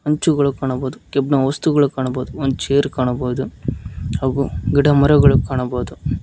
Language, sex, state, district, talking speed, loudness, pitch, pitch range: Kannada, male, Karnataka, Koppal, 115 wpm, -18 LUFS, 135 Hz, 130-140 Hz